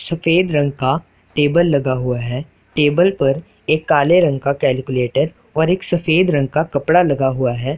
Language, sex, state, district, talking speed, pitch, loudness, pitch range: Hindi, male, Punjab, Pathankot, 175 wpm, 145 Hz, -17 LUFS, 135-170 Hz